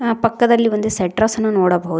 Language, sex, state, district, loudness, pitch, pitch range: Kannada, female, Karnataka, Koppal, -16 LUFS, 220 Hz, 185-230 Hz